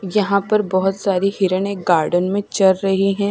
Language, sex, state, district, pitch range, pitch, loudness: Hindi, female, Chhattisgarh, Raipur, 190-200 Hz, 195 Hz, -18 LUFS